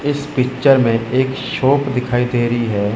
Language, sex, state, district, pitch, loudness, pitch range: Hindi, male, Chandigarh, Chandigarh, 125 Hz, -16 LUFS, 120-135 Hz